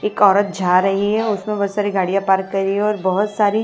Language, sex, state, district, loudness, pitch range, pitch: Hindi, female, Maharashtra, Mumbai Suburban, -18 LUFS, 195-210 Hz, 200 Hz